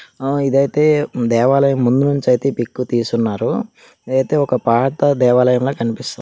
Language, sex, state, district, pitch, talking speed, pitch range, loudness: Telugu, male, Karnataka, Raichur, 130 Hz, 125 wpm, 120-140 Hz, -16 LUFS